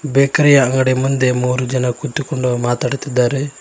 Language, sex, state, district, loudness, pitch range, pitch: Kannada, male, Karnataka, Koppal, -16 LUFS, 125-140 Hz, 130 Hz